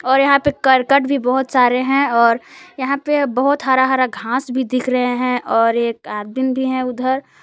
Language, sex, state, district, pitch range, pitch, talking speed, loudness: Hindi, female, Jharkhand, Palamu, 250-275 Hz, 260 Hz, 200 wpm, -16 LUFS